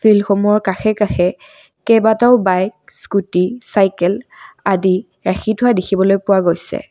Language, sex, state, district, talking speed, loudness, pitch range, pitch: Assamese, female, Assam, Kamrup Metropolitan, 120 wpm, -15 LUFS, 185-220 Hz, 195 Hz